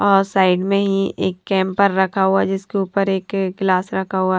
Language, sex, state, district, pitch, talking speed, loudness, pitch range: Hindi, female, Haryana, Rohtak, 195 Hz, 190 wpm, -18 LUFS, 190-195 Hz